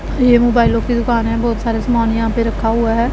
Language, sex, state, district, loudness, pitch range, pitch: Hindi, female, Punjab, Pathankot, -15 LUFS, 225-235 Hz, 230 Hz